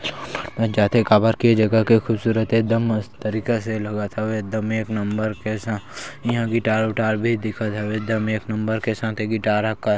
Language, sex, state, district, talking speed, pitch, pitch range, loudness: Chhattisgarhi, male, Chhattisgarh, Sarguja, 185 wpm, 110 Hz, 110-115 Hz, -21 LUFS